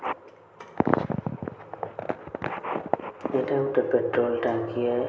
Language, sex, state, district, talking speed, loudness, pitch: Odia, male, Odisha, Sambalpur, 70 wpm, -28 LUFS, 130 Hz